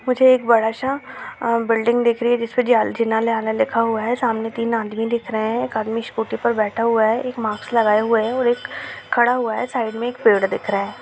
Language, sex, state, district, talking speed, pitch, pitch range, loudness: Hindi, female, Chhattisgarh, Rajnandgaon, 245 wpm, 230 Hz, 220-240 Hz, -19 LUFS